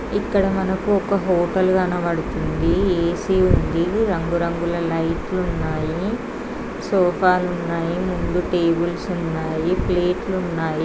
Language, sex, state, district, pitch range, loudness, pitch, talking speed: Telugu, female, Andhra Pradesh, Srikakulam, 170-190 Hz, -21 LUFS, 180 Hz, 105 wpm